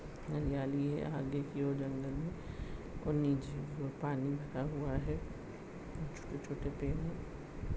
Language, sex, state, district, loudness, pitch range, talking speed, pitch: Hindi, male, Goa, North and South Goa, -39 LUFS, 140-145 Hz, 130 wpm, 140 Hz